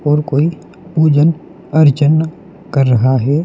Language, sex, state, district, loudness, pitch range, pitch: Hindi, male, Madhya Pradesh, Dhar, -13 LUFS, 145-165 Hz, 155 Hz